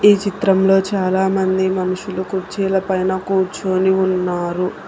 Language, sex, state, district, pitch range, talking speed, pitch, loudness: Telugu, female, Telangana, Hyderabad, 185-195 Hz, 100 wpm, 190 Hz, -18 LUFS